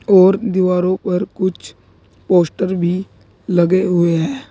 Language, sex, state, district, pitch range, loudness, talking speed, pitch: Hindi, male, Uttar Pradesh, Saharanpur, 170-185 Hz, -16 LUFS, 120 wpm, 180 Hz